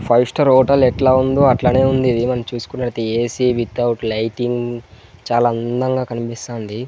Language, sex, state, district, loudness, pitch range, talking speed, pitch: Telugu, male, Andhra Pradesh, Sri Satya Sai, -17 LUFS, 115-130 Hz, 130 wpm, 120 Hz